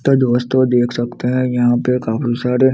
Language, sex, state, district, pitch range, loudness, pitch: Hindi, male, Chandigarh, Chandigarh, 120-130 Hz, -16 LUFS, 125 Hz